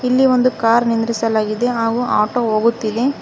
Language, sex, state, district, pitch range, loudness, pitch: Kannada, female, Karnataka, Koppal, 225-245 Hz, -16 LUFS, 230 Hz